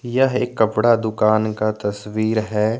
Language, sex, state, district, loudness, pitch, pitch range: Hindi, male, Jharkhand, Deoghar, -19 LUFS, 110 Hz, 110-120 Hz